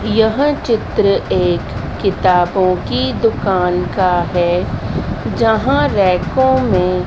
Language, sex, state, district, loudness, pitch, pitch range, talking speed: Hindi, female, Madhya Pradesh, Dhar, -15 LUFS, 185 Hz, 180-225 Hz, 95 wpm